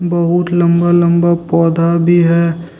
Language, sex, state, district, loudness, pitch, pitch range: Hindi, male, Jharkhand, Deoghar, -12 LUFS, 170 Hz, 170-175 Hz